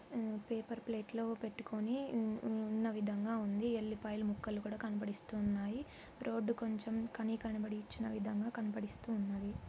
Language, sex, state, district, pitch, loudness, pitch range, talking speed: Telugu, female, Andhra Pradesh, Anantapur, 220 Hz, -40 LUFS, 210-230 Hz, 130 wpm